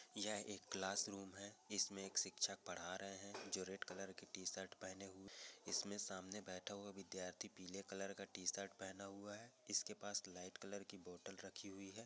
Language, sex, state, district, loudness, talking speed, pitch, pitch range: Hindi, male, Andhra Pradesh, Chittoor, -49 LUFS, 250 wpm, 100 Hz, 95-100 Hz